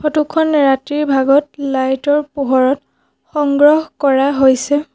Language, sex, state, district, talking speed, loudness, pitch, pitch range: Assamese, female, Assam, Sonitpur, 95 wpm, -14 LUFS, 285 Hz, 270-295 Hz